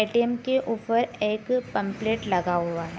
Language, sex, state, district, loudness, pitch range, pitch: Hindi, female, Bihar, Supaul, -26 LUFS, 200-240 Hz, 220 Hz